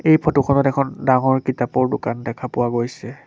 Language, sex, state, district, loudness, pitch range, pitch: Assamese, male, Assam, Sonitpur, -19 LUFS, 120-140 Hz, 130 Hz